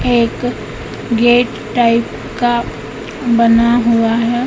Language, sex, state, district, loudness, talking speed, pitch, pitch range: Hindi, female, Madhya Pradesh, Katni, -14 LUFS, 95 wpm, 235 Hz, 230-240 Hz